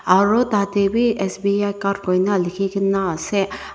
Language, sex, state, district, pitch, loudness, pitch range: Nagamese, female, Nagaland, Dimapur, 195 Hz, -19 LUFS, 190-200 Hz